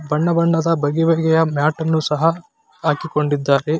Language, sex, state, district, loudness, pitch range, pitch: Kannada, male, Karnataka, Chamarajanagar, -18 LUFS, 150-165 Hz, 160 Hz